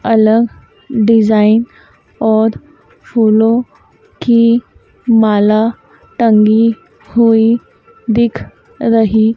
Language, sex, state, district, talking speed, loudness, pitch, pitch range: Hindi, female, Madhya Pradesh, Dhar, 65 wpm, -12 LUFS, 225 Hz, 220-235 Hz